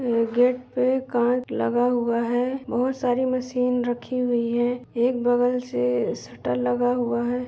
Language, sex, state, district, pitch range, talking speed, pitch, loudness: Hindi, female, Uttar Pradesh, Etah, 235-250 Hz, 155 wpm, 245 Hz, -23 LUFS